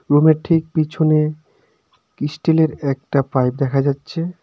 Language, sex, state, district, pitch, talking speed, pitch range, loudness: Bengali, male, West Bengal, Darjeeling, 155 Hz, 110 wpm, 140-160 Hz, -18 LUFS